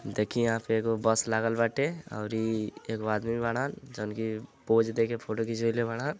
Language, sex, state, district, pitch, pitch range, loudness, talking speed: Bhojpuri, male, Uttar Pradesh, Gorakhpur, 115 Hz, 110-115 Hz, -30 LUFS, 175 wpm